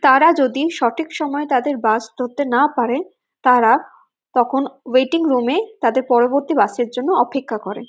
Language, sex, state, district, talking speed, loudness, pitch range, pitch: Bengali, female, West Bengal, North 24 Parganas, 165 wpm, -18 LUFS, 240-290 Hz, 260 Hz